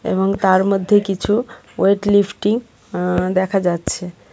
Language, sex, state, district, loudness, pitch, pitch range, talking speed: Bengali, female, Tripura, West Tripura, -18 LUFS, 195 Hz, 185-205 Hz, 125 wpm